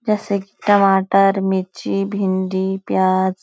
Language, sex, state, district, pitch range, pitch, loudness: Hindi, female, Bihar, Supaul, 190-200 Hz, 195 Hz, -18 LUFS